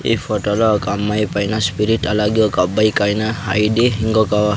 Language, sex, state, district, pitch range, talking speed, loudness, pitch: Telugu, male, Andhra Pradesh, Sri Satya Sai, 105-110 Hz, 155 wpm, -17 LUFS, 105 Hz